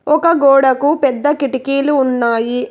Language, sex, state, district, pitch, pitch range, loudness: Telugu, female, Telangana, Hyderabad, 275 Hz, 255-290 Hz, -13 LUFS